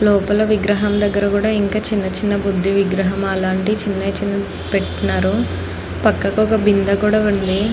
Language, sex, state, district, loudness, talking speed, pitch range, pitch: Telugu, female, Andhra Pradesh, Anantapur, -17 LUFS, 140 wpm, 195-210 Hz, 205 Hz